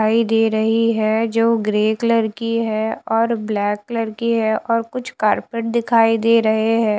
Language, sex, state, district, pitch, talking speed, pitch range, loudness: Hindi, female, Bihar, West Champaran, 225 Hz, 180 wpm, 220-230 Hz, -18 LUFS